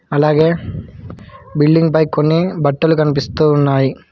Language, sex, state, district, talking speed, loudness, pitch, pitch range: Telugu, male, Telangana, Hyderabad, 100 wpm, -14 LUFS, 155 Hz, 145-160 Hz